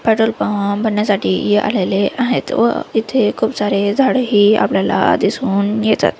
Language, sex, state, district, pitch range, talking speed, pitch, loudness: Marathi, female, Maharashtra, Nagpur, 205-230 Hz, 135 wpm, 215 Hz, -15 LUFS